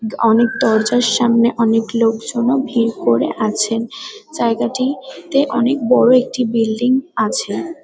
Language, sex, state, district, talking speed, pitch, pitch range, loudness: Bengali, female, West Bengal, Kolkata, 105 wpm, 235 Hz, 225-260 Hz, -16 LUFS